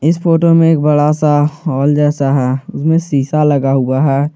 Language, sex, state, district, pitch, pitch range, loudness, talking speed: Hindi, male, Jharkhand, Garhwa, 150 Hz, 140-155 Hz, -12 LUFS, 180 wpm